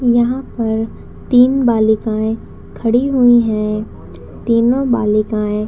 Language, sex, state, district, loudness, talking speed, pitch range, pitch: Hindi, female, Chhattisgarh, Raigarh, -15 LUFS, 95 wpm, 215-245 Hz, 230 Hz